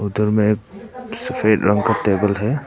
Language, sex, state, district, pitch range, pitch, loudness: Hindi, male, Arunachal Pradesh, Papum Pare, 105-140 Hz, 105 Hz, -18 LUFS